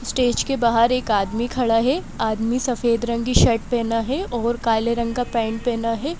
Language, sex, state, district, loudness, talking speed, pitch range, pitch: Hindi, female, Madhya Pradesh, Bhopal, -21 LUFS, 205 wpm, 230-245 Hz, 235 Hz